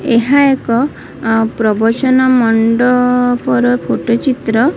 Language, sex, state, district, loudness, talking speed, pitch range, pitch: Odia, female, Odisha, Sambalpur, -12 LUFS, 90 wpm, 230-260 Hz, 245 Hz